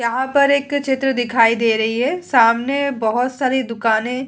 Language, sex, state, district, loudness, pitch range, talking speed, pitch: Hindi, female, Uttar Pradesh, Jalaun, -17 LUFS, 230-270 Hz, 180 wpm, 255 Hz